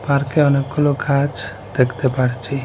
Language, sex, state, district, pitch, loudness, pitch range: Bengali, male, Assam, Hailakandi, 140 Hz, -18 LUFS, 125-140 Hz